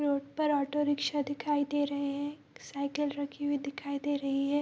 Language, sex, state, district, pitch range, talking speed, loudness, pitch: Hindi, female, Bihar, Kishanganj, 280-290 Hz, 195 wpm, -32 LUFS, 285 Hz